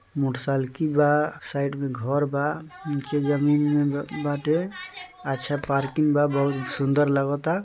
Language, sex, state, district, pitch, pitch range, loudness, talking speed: Bhojpuri, male, Bihar, East Champaran, 145 Hz, 140-150 Hz, -24 LUFS, 125 wpm